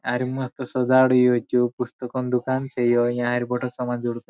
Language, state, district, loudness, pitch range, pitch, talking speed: Bhili, Maharashtra, Dhule, -22 LUFS, 120-130 Hz, 125 Hz, 180 wpm